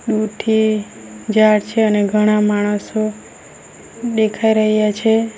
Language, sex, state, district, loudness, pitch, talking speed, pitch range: Gujarati, female, Gujarat, Valsad, -16 LUFS, 215 Hz, 100 wpm, 210-220 Hz